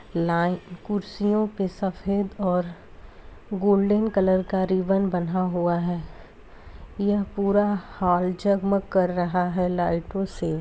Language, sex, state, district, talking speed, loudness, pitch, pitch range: Hindi, female, Uttar Pradesh, Deoria, 120 wpm, -24 LUFS, 185 Hz, 175-200 Hz